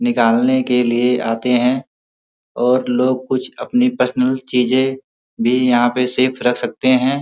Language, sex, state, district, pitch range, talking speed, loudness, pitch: Hindi, male, Uttar Pradesh, Muzaffarnagar, 120-130 Hz, 150 wpm, -16 LUFS, 125 Hz